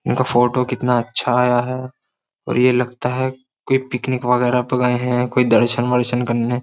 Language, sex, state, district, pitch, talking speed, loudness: Hindi, male, Uttar Pradesh, Jyotiba Phule Nagar, 125 Hz, 180 wpm, -18 LUFS